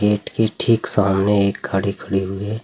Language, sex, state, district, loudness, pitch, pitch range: Hindi, male, Uttar Pradesh, Saharanpur, -18 LUFS, 100 Hz, 95-105 Hz